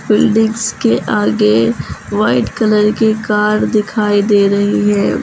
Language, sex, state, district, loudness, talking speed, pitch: Hindi, female, Uttar Pradesh, Lucknow, -13 LUFS, 125 wpm, 210 Hz